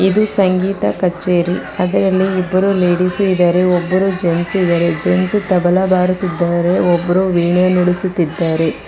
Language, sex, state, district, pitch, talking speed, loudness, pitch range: Kannada, female, Karnataka, Bangalore, 180 Hz, 110 wpm, -15 LUFS, 175-190 Hz